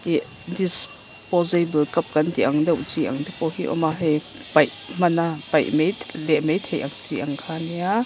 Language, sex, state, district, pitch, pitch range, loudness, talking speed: Mizo, female, Mizoram, Aizawl, 160 Hz, 150-170 Hz, -23 LUFS, 180 wpm